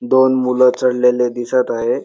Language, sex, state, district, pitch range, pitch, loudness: Marathi, male, Maharashtra, Dhule, 125-130 Hz, 125 Hz, -15 LUFS